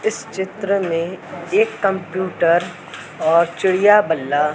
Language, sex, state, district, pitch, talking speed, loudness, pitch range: Hindi, male, Madhya Pradesh, Katni, 185 Hz, 105 wpm, -18 LUFS, 170-195 Hz